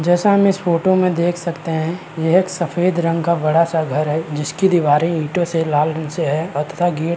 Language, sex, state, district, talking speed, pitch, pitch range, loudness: Hindi, male, Uttar Pradesh, Varanasi, 220 wpm, 170 Hz, 160-175 Hz, -18 LUFS